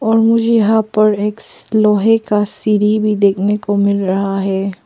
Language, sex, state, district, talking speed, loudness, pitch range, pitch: Hindi, female, Arunachal Pradesh, Papum Pare, 175 wpm, -14 LUFS, 200-220 Hz, 210 Hz